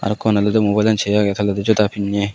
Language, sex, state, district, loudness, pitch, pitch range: Chakma, male, Tripura, West Tripura, -17 LUFS, 105 Hz, 100-110 Hz